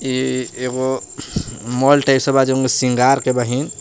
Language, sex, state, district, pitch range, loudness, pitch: Bhojpuri, male, Jharkhand, Palamu, 125-135 Hz, -17 LUFS, 130 Hz